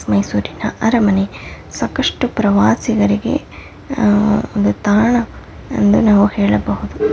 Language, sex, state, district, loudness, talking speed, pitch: Kannada, female, Karnataka, Mysore, -15 LUFS, 85 wpm, 205 Hz